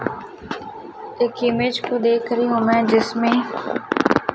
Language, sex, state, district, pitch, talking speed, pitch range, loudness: Hindi, female, Chhattisgarh, Raipur, 240 Hz, 110 wpm, 230-245 Hz, -20 LUFS